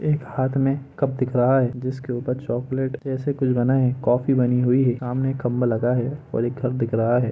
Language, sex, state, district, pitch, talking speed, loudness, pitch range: Hindi, male, Jharkhand, Jamtara, 130 Hz, 245 wpm, -22 LUFS, 125-135 Hz